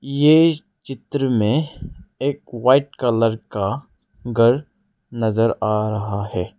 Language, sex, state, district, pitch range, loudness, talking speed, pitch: Hindi, male, Arunachal Pradesh, Lower Dibang Valley, 110-140 Hz, -19 LUFS, 110 wpm, 120 Hz